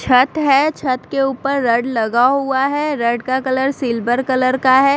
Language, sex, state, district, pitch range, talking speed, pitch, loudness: Hindi, female, Bihar, Katihar, 250-275 Hz, 195 wpm, 260 Hz, -16 LUFS